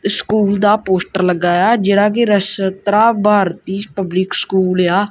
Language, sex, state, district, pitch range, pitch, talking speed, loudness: Punjabi, female, Punjab, Kapurthala, 185-210 Hz, 200 Hz, 155 wpm, -14 LUFS